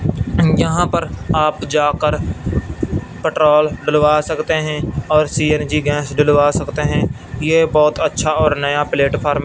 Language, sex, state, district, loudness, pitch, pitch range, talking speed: Hindi, male, Punjab, Fazilka, -16 LUFS, 150 Hz, 145-155 Hz, 135 wpm